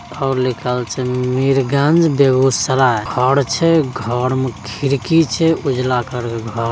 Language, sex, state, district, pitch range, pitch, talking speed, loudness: Angika, male, Bihar, Begusarai, 125-140 Hz, 130 Hz, 145 wpm, -16 LUFS